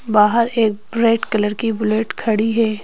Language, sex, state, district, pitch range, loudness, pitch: Hindi, female, Madhya Pradesh, Bhopal, 215-230 Hz, -17 LUFS, 220 Hz